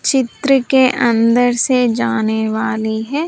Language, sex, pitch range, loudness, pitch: Hindi, female, 220-260 Hz, -15 LUFS, 240 Hz